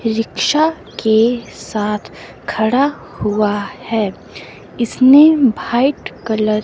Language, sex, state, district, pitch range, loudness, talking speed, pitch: Hindi, female, Himachal Pradesh, Shimla, 215-265 Hz, -15 LUFS, 90 wpm, 225 Hz